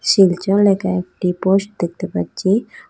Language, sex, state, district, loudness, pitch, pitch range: Bengali, female, Assam, Hailakandi, -17 LUFS, 190 Hz, 180-195 Hz